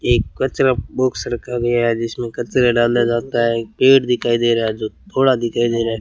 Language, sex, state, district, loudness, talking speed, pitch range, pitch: Hindi, male, Rajasthan, Bikaner, -17 LUFS, 230 wpm, 115-125 Hz, 120 Hz